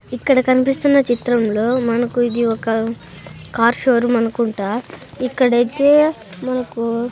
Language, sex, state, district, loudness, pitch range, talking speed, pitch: Telugu, female, Andhra Pradesh, Sri Satya Sai, -17 LUFS, 230-255 Hz, 95 wpm, 240 Hz